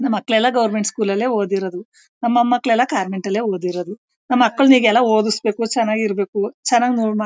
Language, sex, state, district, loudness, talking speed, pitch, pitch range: Kannada, female, Karnataka, Mysore, -18 LUFS, 125 wpm, 220 Hz, 205-245 Hz